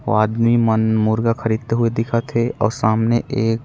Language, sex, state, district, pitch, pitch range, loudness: Chhattisgarhi, male, Chhattisgarh, Raigarh, 115 Hz, 110-115 Hz, -18 LUFS